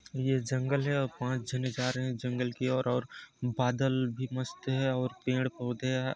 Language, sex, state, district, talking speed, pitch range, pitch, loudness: Hindi, male, Chhattisgarh, Sarguja, 215 wpm, 125-130 Hz, 130 Hz, -32 LUFS